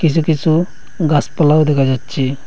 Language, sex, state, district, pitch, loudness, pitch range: Bengali, male, Assam, Hailakandi, 150 Hz, -15 LUFS, 135-160 Hz